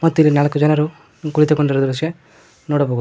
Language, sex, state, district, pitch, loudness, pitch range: Kannada, male, Karnataka, Koppal, 150 Hz, -17 LUFS, 145-155 Hz